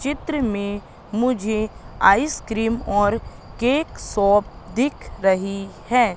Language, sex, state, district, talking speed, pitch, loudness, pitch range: Hindi, female, Madhya Pradesh, Katni, 95 wpm, 220 Hz, -21 LUFS, 205-250 Hz